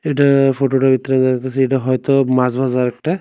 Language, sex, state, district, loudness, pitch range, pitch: Bengali, male, Tripura, West Tripura, -15 LUFS, 130-135 Hz, 130 Hz